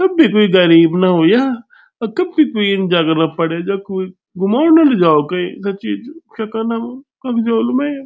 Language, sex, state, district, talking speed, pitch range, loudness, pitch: Garhwali, male, Uttarakhand, Tehri Garhwal, 185 wpm, 180-260 Hz, -14 LUFS, 210 Hz